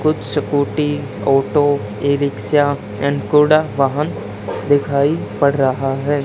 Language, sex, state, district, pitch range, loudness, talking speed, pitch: Hindi, male, Haryana, Charkhi Dadri, 135-145 Hz, -17 LUFS, 115 wpm, 140 Hz